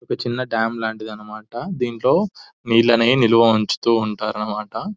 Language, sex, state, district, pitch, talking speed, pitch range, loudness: Telugu, male, Telangana, Nalgonda, 115 Hz, 120 wpm, 110-120 Hz, -19 LUFS